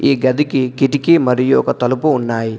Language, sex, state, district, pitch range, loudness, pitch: Telugu, male, Telangana, Adilabad, 125-145 Hz, -15 LUFS, 130 Hz